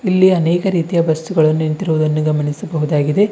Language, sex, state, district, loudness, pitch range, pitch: Kannada, male, Karnataka, Bidar, -16 LUFS, 155-185 Hz, 160 Hz